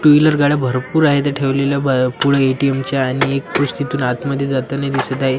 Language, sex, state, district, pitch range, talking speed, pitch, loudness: Marathi, male, Maharashtra, Washim, 130-140 Hz, 210 wpm, 140 Hz, -16 LUFS